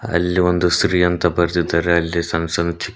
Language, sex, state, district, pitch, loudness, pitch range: Kannada, male, Karnataka, Koppal, 85 Hz, -18 LUFS, 85-90 Hz